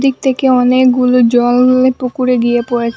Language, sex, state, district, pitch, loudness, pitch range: Bengali, female, Assam, Hailakandi, 250 Hz, -11 LUFS, 240-255 Hz